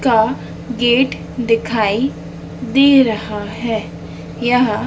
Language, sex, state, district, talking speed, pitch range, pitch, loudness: Hindi, female, Madhya Pradesh, Dhar, 85 wpm, 220-250 Hz, 235 Hz, -16 LUFS